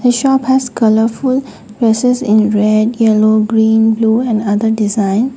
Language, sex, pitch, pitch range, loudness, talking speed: English, female, 225 Hz, 215-250 Hz, -12 LUFS, 145 wpm